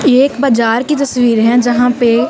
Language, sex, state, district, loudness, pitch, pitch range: Hindi, female, Punjab, Kapurthala, -12 LUFS, 245 Hz, 235-265 Hz